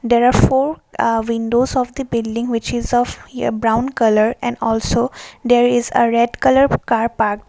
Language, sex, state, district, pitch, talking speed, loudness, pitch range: English, female, Assam, Kamrup Metropolitan, 235 Hz, 170 wpm, -17 LUFS, 230-245 Hz